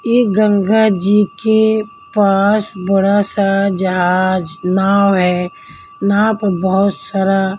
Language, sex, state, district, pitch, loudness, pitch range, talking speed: Hindi, female, Maharashtra, Mumbai Suburban, 200 Hz, -14 LUFS, 190-215 Hz, 110 wpm